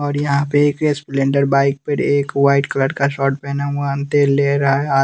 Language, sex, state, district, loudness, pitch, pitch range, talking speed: Hindi, male, Bihar, West Champaran, -17 LUFS, 140 Hz, 140-145 Hz, 240 wpm